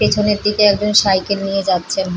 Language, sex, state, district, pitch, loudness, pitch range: Bengali, female, West Bengal, Paschim Medinipur, 200 Hz, -15 LUFS, 190-210 Hz